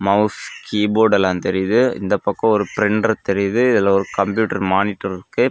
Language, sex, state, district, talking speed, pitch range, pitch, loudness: Tamil, male, Tamil Nadu, Kanyakumari, 150 wpm, 95-110 Hz, 100 Hz, -18 LUFS